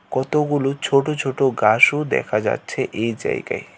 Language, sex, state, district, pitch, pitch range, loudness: Bengali, male, Tripura, West Tripura, 140 Hz, 135-150 Hz, -19 LUFS